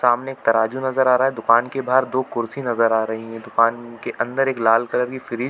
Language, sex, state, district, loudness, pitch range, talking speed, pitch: Hindi, male, Chhattisgarh, Bilaspur, -20 LUFS, 115-130 Hz, 270 wpm, 120 Hz